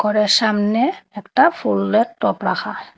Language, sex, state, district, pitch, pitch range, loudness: Bengali, female, Assam, Hailakandi, 215 Hz, 210-235 Hz, -18 LUFS